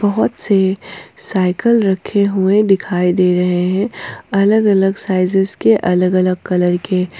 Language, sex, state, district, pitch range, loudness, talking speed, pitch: Hindi, female, Jharkhand, Ranchi, 180-200 Hz, -15 LUFS, 125 wpm, 190 Hz